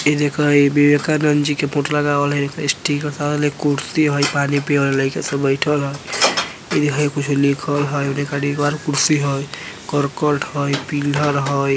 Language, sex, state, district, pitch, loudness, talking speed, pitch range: Bajjika, male, Bihar, Vaishali, 145 Hz, -18 LUFS, 155 wpm, 140-145 Hz